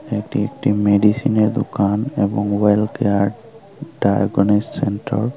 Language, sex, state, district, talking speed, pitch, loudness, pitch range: Bengali, female, Tripura, Unakoti, 110 wpm, 105 Hz, -18 LUFS, 100-115 Hz